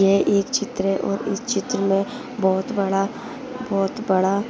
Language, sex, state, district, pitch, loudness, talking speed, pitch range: Hindi, female, Maharashtra, Dhule, 200 Hz, -22 LUFS, 160 wpm, 195-240 Hz